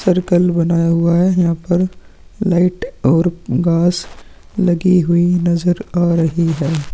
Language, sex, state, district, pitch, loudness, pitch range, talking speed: Hindi, male, Chhattisgarh, Korba, 175 Hz, -15 LUFS, 170-180 Hz, 130 wpm